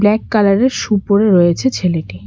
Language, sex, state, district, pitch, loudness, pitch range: Bengali, female, West Bengal, Cooch Behar, 205 Hz, -14 LUFS, 175-215 Hz